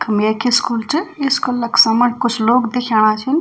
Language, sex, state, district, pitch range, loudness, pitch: Garhwali, female, Uttarakhand, Tehri Garhwal, 225-250 Hz, -15 LUFS, 240 Hz